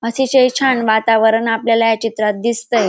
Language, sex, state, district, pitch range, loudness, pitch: Marathi, female, Maharashtra, Dhule, 220-240 Hz, -14 LUFS, 230 Hz